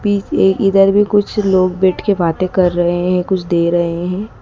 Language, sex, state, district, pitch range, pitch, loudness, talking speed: Hindi, female, Madhya Pradesh, Dhar, 175-195 Hz, 185 Hz, -14 LUFS, 205 wpm